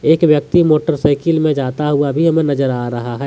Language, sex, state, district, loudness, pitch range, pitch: Hindi, male, Jharkhand, Deoghar, -15 LUFS, 140-160 Hz, 150 Hz